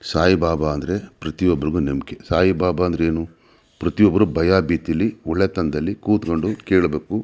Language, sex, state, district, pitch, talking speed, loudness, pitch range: Kannada, male, Karnataka, Mysore, 90 Hz, 115 wpm, -20 LUFS, 80-95 Hz